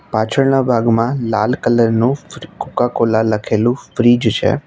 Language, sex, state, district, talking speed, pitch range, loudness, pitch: Gujarati, male, Gujarat, Navsari, 130 wpm, 110-130 Hz, -15 LUFS, 120 Hz